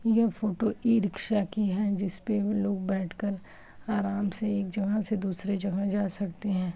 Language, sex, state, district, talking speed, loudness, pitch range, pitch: Hindi, male, Uttar Pradesh, Varanasi, 175 wpm, -29 LUFS, 195-215 Hz, 200 Hz